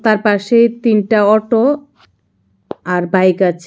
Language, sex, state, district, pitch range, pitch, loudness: Bengali, female, Tripura, West Tripura, 175-225 Hz, 205 Hz, -13 LUFS